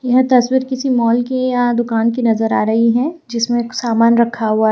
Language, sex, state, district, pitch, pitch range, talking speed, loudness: Hindi, female, Haryana, Jhajjar, 240 Hz, 230-255 Hz, 205 wpm, -15 LUFS